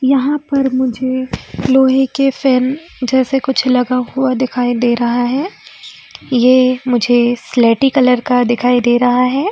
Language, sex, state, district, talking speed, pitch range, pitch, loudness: Hindi, female, Bihar, Jamui, 145 wpm, 245-265 Hz, 255 Hz, -14 LUFS